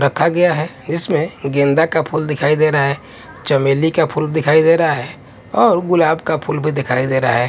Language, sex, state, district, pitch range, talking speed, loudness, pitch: Hindi, male, Chhattisgarh, Raipur, 140-160 Hz, 215 wpm, -16 LUFS, 150 Hz